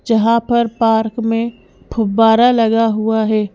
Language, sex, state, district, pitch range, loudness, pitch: Hindi, female, Madhya Pradesh, Bhopal, 220-230 Hz, -14 LUFS, 225 Hz